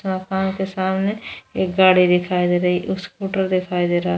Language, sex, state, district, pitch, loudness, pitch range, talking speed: Hindi, female, Goa, North and South Goa, 185 Hz, -19 LUFS, 180-190 Hz, 185 wpm